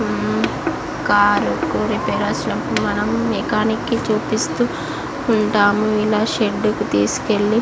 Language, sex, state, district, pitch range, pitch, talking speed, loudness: Telugu, female, Andhra Pradesh, Visakhapatnam, 205-215 Hz, 210 Hz, 120 wpm, -19 LUFS